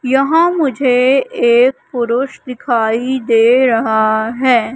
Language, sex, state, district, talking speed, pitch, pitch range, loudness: Hindi, female, Madhya Pradesh, Katni, 100 wpm, 250 Hz, 235-265 Hz, -13 LUFS